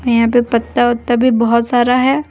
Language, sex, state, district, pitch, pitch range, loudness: Hindi, female, Jharkhand, Deoghar, 240 Hz, 235-250 Hz, -13 LUFS